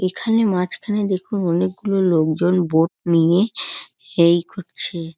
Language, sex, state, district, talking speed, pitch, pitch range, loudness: Bengali, female, West Bengal, North 24 Parganas, 105 wpm, 180 Hz, 170-195 Hz, -19 LUFS